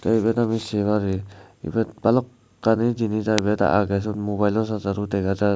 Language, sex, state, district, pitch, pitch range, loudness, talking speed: Chakma, male, Tripura, Dhalai, 105 Hz, 100-110 Hz, -22 LUFS, 160 wpm